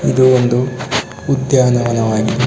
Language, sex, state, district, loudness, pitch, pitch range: Kannada, male, Karnataka, Shimoga, -14 LUFS, 125 Hz, 120-130 Hz